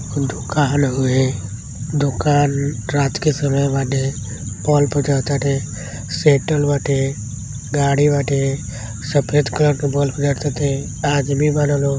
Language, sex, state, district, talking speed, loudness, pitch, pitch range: Bhojpuri, male, Uttar Pradesh, Deoria, 90 wpm, -18 LUFS, 140 Hz, 135-145 Hz